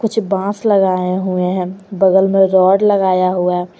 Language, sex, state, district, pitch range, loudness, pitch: Hindi, female, Jharkhand, Garhwa, 185-195 Hz, -14 LUFS, 190 Hz